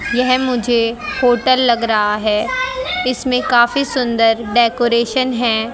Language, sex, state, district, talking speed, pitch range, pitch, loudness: Hindi, female, Haryana, Jhajjar, 115 wpm, 230-255 Hz, 240 Hz, -15 LUFS